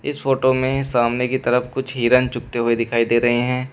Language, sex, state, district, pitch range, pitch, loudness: Hindi, male, Uttar Pradesh, Shamli, 120-130 Hz, 125 Hz, -19 LUFS